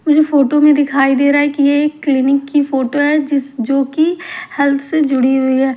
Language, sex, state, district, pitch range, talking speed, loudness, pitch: Hindi, female, Maharashtra, Mumbai Suburban, 275-300 Hz, 220 wpm, -13 LUFS, 280 Hz